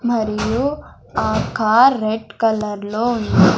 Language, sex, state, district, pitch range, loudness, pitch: Telugu, male, Andhra Pradesh, Sri Satya Sai, 215-240 Hz, -18 LUFS, 225 Hz